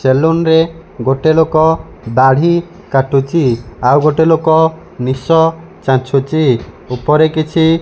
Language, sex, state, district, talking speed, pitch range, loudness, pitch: Odia, male, Odisha, Malkangiri, 105 wpm, 130-165 Hz, -13 LUFS, 155 Hz